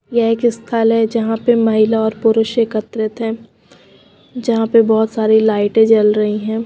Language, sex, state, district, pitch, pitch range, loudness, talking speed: Hindi, female, Himachal Pradesh, Shimla, 225 Hz, 220-230 Hz, -15 LUFS, 170 wpm